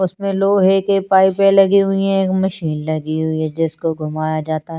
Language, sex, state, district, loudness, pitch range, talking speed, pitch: Hindi, female, Chandigarh, Chandigarh, -16 LUFS, 155-195 Hz, 190 wpm, 190 Hz